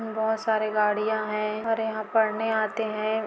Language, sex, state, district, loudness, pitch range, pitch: Hindi, female, Chhattisgarh, Korba, -26 LUFS, 215-220 Hz, 220 Hz